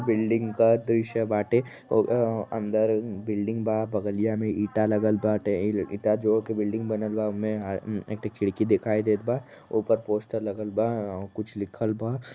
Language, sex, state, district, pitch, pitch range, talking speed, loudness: Bhojpuri, male, Uttar Pradesh, Varanasi, 110 Hz, 105-110 Hz, 175 wpm, -26 LUFS